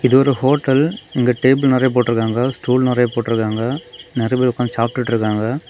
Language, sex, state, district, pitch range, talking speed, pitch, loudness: Tamil, male, Tamil Nadu, Kanyakumari, 115-130 Hz, 170 wpm, 125 Hz, -17 LUFS